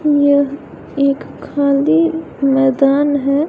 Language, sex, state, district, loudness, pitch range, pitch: Hindi, female, Bihar, West Champaran, -15 LUFS, 275-290 Hz, 285 Hz